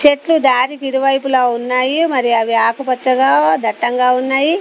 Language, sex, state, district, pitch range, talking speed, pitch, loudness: Telugu, female, Telangana, Komaram Bheem, 245-275 Hz, 115 wpm, 255 Hz, -14 LUFS